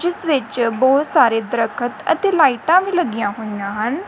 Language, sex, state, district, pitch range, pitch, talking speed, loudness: Punjabi, female, Punjab, Kapurthala, 225-330 Hz, 245 Hz, 160 wpm, -17 LUFS